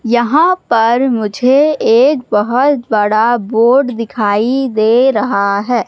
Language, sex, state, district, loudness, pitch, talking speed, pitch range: Hindi, female, Madhya Pradesh, Katni, -12 LUFS, 240 Hz, 110 wpm, 215-265 Hz